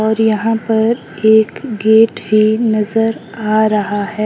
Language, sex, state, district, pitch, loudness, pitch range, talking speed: Hindi, female, Himachal Pradesh, Shimla, 220 Hz, -14 LUFS, 215-225 Hz, 140 wpm